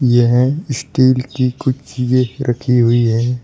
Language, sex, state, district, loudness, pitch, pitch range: Hindi, male, Uttar Pradesh, Shamli, -15 LUFS, 125 Hz, 120-130 Hz